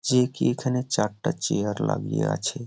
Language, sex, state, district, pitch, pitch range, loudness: Bengali, male, West Bengal, Jhargram, 125 Hz, 105-135 Hz, -25 LUFS